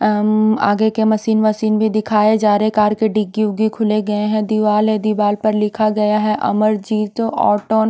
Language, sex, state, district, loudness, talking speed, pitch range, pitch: Hindi, female, Punjab, Pathankot, -16 LUFS, 190 wpm, 210-220 Hz, 215 Hz